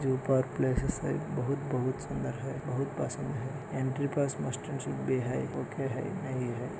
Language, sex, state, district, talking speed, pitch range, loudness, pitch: Hindi, male, Maharashtra, Solapur, 115 wpm, 130-140 Hz, -33 LUFS, 130 Hz